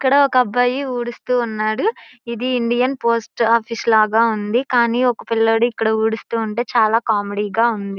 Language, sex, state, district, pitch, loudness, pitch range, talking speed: Telugu, female, Andhra Pradesh, Guntur, 235 Hz, -18 LUFS, 220-245 Hz, 160 wpm